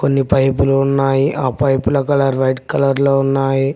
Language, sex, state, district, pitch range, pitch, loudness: Telugu, male, Telangana, Mahabubabad, 135-140 Hz, 135 Hz, -15 LUFS